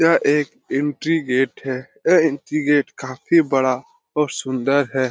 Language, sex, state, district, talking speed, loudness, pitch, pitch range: Hindi, male, Bihar, Lakhisarai, 155 wpm, -20 LUFS, 140 Hz, 130-155 Hz